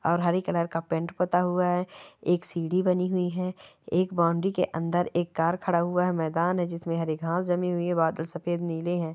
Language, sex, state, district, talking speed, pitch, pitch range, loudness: Hindi, male, Chhattisgarh, Bastar, 215 wpm, 175 Hz, 170-180 Hz, -27 LUFS